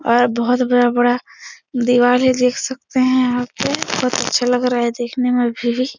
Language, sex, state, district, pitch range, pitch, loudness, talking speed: Hindi, female, Bihar, Supaul, 245-250 Hz, 245 Hz, -17 LUFS, 180 wpm